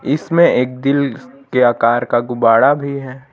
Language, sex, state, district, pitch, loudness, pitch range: Hindi, male, Uttar Pradesh, Lucknow, 130 Hz, -15 LUFS, 120-145 Hz